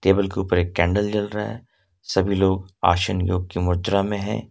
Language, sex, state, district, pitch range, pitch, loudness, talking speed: Hindi, male, Jharkhand, Ranchi, 90-105 Hz, 95 Hz, -22 LUFS, 215 wpm